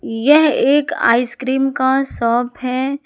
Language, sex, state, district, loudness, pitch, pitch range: Hindi, female, Jharkhand, Ranchi, -16 LUFS, 260 Hz, 245-280 Hz